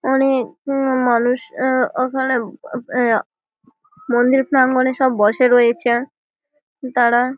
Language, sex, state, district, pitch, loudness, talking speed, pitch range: Bengali, female, West Bengal, Malda, 255 Hz, -17 LUFS, 105 wpm, 240-265 Hz